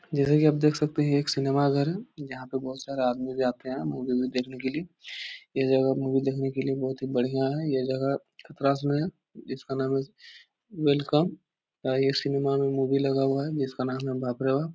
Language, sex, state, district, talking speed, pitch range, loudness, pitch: Hindi, male, Bihar, Jahanabad, 235 wpm, 130-150 Hz, -27 LUFS, 135 Hz